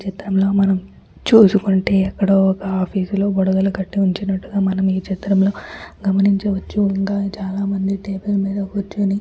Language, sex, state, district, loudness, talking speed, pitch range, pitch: Telugu, female, Telangana, Nalgonda, -18 LUFS, 135 wpm, 190-200 Hz, 195 Hz